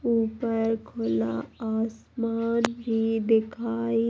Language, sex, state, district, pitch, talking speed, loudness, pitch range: Hindi, female, Andhra Pradesh, Chittoor, 225 Hz, 205 wpm, -27 LUFS, 220-230 Hz